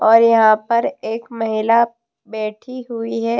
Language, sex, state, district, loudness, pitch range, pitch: Hindi, female, Jharkhand, Deoghar, -17 LUFS, 220-235 Hz, 230 Hz